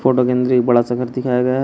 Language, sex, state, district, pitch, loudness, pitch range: Hindi, male, Uttar Pradesh, Shamli, 125 Hz, -17 LUFS, 125-130 Hz